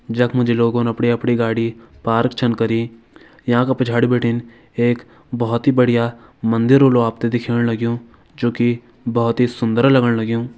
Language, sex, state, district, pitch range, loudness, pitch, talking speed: Hindi, male, Uttarakhand, Tehri Garhwal, 115-120 Hz, -18 LUFS, 120 Hz, 160 wpm